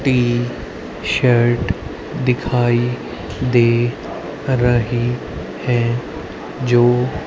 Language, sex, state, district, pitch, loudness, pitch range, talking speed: Hindi, male, Haryana, Rohtak, 120 Hz, -18 LUFS, 115-125 Hz, 60 wpm